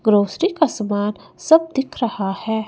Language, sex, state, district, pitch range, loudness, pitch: Hindi, female, Chandigarh, Chandigarh, 205-270 Hz, -19 LUFS, 220 Hz